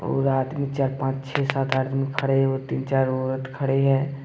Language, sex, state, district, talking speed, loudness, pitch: Hindi, male, Jharkhand, Deoghar, 200 wpm, -24 LUFS, 135 Hz